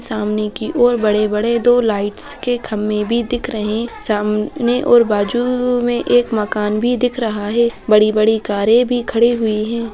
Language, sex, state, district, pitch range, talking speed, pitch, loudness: Hindi, female, Bihar, Jahanabad, 210-240 Hz, 175 wpm, 225 Hz, -16 LUFS